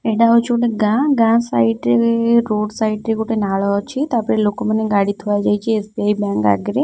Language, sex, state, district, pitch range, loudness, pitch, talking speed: Odia, female, Odisha, Khordha, 205-230 Hz, -17 LUFS, 215 Hz, 195 wpm